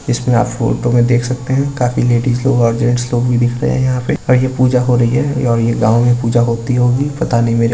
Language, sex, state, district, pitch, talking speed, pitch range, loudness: Hindi, male, Uttar Pradesh, Budaun, 120 Hz, 285 wpm, 120-125 Hz, -14 LUFS